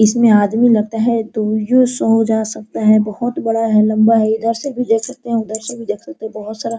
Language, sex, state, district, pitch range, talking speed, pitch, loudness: Hindi, female, Bihar, Araria, 215-230 Hz, 290 wpm, 225 Hz, -15 LUFS